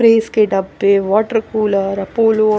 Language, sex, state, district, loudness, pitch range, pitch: Hindi, female, Punjab, Pathankot, -15 LUFS, 195-225 Hz, 215 Hz